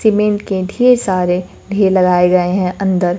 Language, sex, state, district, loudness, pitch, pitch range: Hindi, female, Bihar, Kaimur, -14 LUFS, 185 Hz, 180-205 Hz